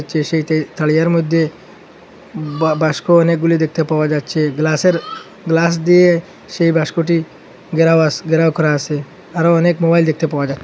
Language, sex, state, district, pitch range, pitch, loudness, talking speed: Bengali, male, Assam, Hailakandi, 155-170 Hz, 165 Hz, -15 LUFS, 145 wpm